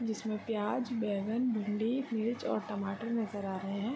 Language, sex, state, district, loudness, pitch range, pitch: Hindi, female, Bihar, Gopalganj, -35 LUFS, 205-230 Hz, 220 Hz